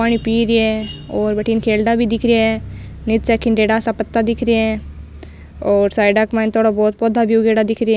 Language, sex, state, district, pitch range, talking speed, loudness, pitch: Rajasthani, female, Rajasthan, Nagaur, 215-230 Hz, 225 wpm, -16 LUFS, 225 Hz